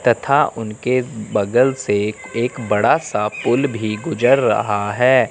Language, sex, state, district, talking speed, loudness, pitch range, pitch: Hindi, male, Chandigarh, Chandigarh, 135 wpm, -18 LUFS, 105-125 Hz, 115 Hz